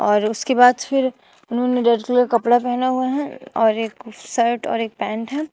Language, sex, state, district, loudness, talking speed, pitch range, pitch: Hindi, female, Uttar Pradesh, Shamli, -19 LUFS, 205 wpm, 225-255 Hz, 245 Hz